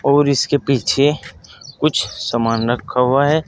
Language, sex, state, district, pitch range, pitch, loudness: Hindi, male, Uttar Pradesh, Saharanpur, 125-145 Hz, 140 Hz, -17 LUFS